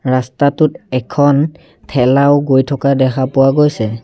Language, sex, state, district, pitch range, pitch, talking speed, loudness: Assamese, male, Assam, Sonitpur, 130-145 Hz, 140 Hz, 120 wpm, -13 LUFS